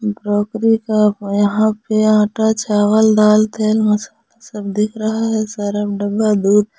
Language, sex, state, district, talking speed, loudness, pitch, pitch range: Hindi, female, Jharkhand, Garhwa, 140 wpm, -15 LUFS, 215 Hz, 205-220 Hz